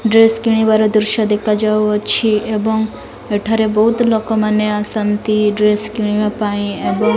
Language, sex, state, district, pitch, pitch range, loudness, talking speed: Odia, female, Odisha, Malkangiri, 215 Hz, 210-220 Hz, -15 LUFS, 135 wpm